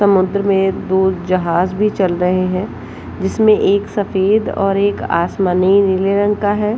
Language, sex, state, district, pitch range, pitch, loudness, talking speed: Hindi, female, Jharkhand, Sahebganj, 185-205 Hz, 195 Hz, -15 LUFS, 160 wpm